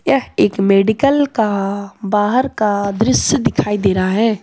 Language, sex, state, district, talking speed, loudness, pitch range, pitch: Hindi, female, Jharkhand, Deoghar, 150 wpm, -15 LUFS, 200-230 Hz, 210 Hz